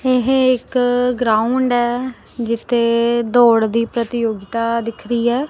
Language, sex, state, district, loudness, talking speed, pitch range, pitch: Punjabi, female, Punjab, Kapurthala, -17 LUFS, 120 wpm, 230-250 Hz, 240 Hz